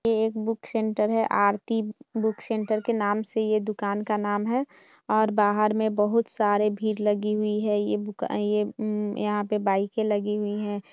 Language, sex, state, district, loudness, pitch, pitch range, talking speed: Hindi, female, Bihar, Saharsa, -26 LUFS, 210 Hz, 210-220 Hz, 190 wpm